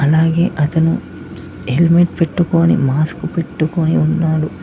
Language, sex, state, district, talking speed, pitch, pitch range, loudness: Telugu, male, Telangana, Mahabubabad, 90 wpm, 160 Hz, 145-165 Hz, -15 LUFS